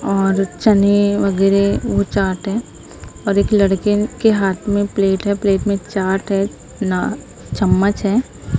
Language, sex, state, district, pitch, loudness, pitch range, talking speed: Hindi, female, Maharashtra, Gondia, 200 Hz, -17 LUFS, 195-205 Hz, 145 wpm